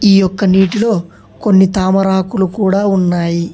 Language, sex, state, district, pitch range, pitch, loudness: Telugu, male, Telangana, Hyderabad, 185-200 Hz, 190 Hz, -13 LUFS